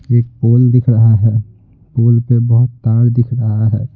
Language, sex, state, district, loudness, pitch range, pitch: Hindi, male, Bihar, Patna, -12 LUFS, 115-120 Hz, 120 Hz